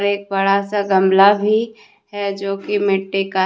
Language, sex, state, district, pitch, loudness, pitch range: Hindi, female, Jharkhand, Deoghar, 200 Hz, -17 LUFS, 195-205 Hz